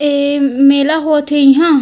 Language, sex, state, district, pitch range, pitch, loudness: Chhattisgarhi, female, Chhattisgarh, Raigarh, 280-300 Hz, 285 Hz, -11 LUFS